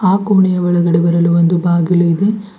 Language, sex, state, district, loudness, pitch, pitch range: Kannada, female, Karnataka, Bidar, -13 LUFS, 175 Hz, 170-190 Hz